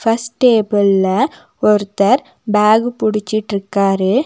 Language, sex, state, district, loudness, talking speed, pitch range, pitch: Tamil, female, Tamil Nadu, Nilgiris, -15 LUFS, 70 wpm, 200-230 Hz, 215 Hz